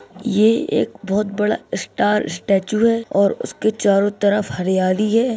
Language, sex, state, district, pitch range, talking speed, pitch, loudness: Hindi, male, Chhattisgarh, Kabirdham, 195-220 Hz, 155 wpm, 205 Hz, -18 LUFS